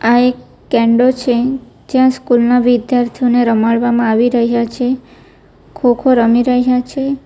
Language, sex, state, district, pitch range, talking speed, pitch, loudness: Gujarati, female, Gujarat, Valsad, 235-255 Hz, 130 wpm, 245 Hz, -13 LUFS